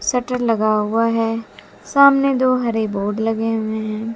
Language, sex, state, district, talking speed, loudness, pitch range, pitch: Hindi, female, Haryana, Jhajjar, 160 wpm, -18 LUFS, 220-250 Hz, 225 Hz